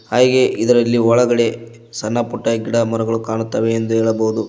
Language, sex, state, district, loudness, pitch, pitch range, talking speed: Kannada, male, Karnataka, Koppal, -17 LUFS, 115 Hz, 115-120 Hz, 120 wpm